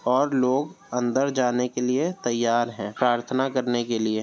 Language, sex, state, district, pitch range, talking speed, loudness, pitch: Hindi, male, Uttar Pradesh, Jyotiba Phule Nagar, 120-130 Hz, 185 wpm, -24 LUFS, 125 Hz